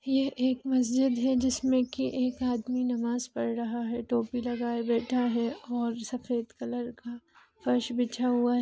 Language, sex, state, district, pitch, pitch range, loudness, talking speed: Hindi, female, Bihar, Vaishali, 245 Hz, 240-255 Hz, -30 LUFS, 160 wpm